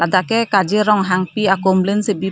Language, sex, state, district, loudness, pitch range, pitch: Karbi, female, Assam, Karbi Anglong, -16 LUFS, 185-210 Hz, 195 Hz